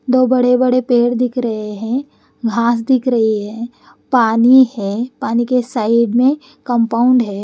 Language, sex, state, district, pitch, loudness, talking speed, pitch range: Hindi, female, Bihar, West Champaran, 240 Hz, -15 LUFS, 155 wpm, 230-255 Hz